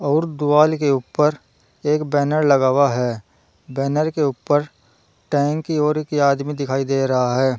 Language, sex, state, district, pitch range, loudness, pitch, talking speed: Hindi, male, Uttar Pradesh, Saharanpur, 130-150 Hz, -19 LUFS, 140 Hz, 165 wpm